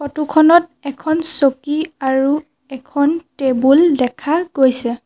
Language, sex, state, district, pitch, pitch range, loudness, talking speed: Assamese, female, Assam, Sonitpur, 290 Hz, 265-315 Hz, -16 LUFS, 105 wpm